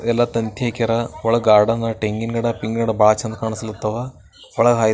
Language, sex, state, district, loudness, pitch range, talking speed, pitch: Kannada, male, Karnataka, Bijapur, -19 LUFS, 110-115 Hz, 135 wpm, 115 Hz